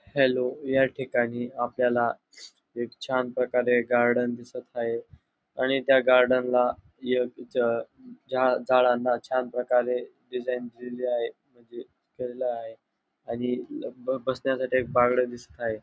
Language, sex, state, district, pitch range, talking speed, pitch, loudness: Marathi, male, Maharashtra, Dhule, 120-130 Hz, 125 wpm, 125 Hz, -26 LUFS